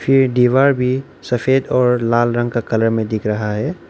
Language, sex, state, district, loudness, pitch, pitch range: Hindi, male, Arunachal Pradesh, Lower Dibang Valley, -16 LUFS, 125 Hz, 115-130 Hz